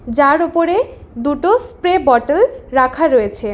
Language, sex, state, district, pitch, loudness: Bengali, female, West Bengal, Alipurduar, 335 Hz, -15 LUFS